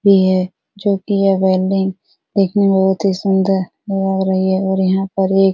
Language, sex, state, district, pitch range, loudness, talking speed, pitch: Hindi, female, Bihar, Supaul, 190-195 Hz, -16 LUFS, 205 wpm, 190 Hz